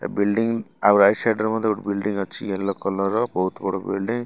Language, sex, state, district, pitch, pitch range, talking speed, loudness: Odia, male, Odisha, Malkangiri, 105 Hz, 100-110 Hz, 225 wpm, -22 LUFS